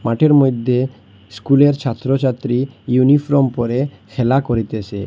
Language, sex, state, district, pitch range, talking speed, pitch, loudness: Bengali, male, Assam, Hailakandi, 115-135 Hz, 105 wpm, 125 Hz, -16 LUFS